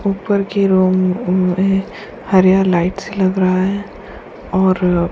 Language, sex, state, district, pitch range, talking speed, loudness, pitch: Hindi, female, Bihar, Kishanganj, 185-195 Hz, 140 wpm, -15 LUFS, 190 Hz